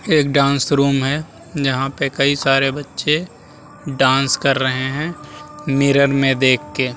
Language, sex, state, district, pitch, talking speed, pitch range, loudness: Hindi, male, Bihar, Vaishali, 140 Hz, 155 wpm, 135-150 Hz, -17 LUFS